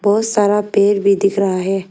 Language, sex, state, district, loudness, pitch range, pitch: Hindi, female, Arunachal Pradesh, Lower Dibang Valley, -15 LUFS, 195-205 Hz, 200 Hz